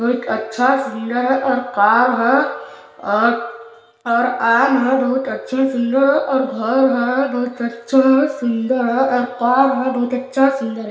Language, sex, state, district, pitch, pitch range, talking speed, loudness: Hindi, male, Chhattisgarh, Balrampur, 250 Hz, 235-265 Hz, 130 wpm, -17 LUFS